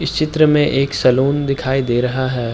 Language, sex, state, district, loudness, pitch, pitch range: Hindi, male, Uttar Pradesh, Hamirpur, -16 LUFS, 135 Hz, 125-145 Hz